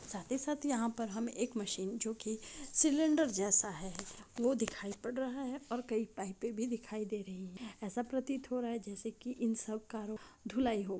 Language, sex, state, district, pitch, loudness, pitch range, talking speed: Hindi, female, Bihar, Saran, 225 Hz, -37 LUFS, 210-250 Hz, 205 wpm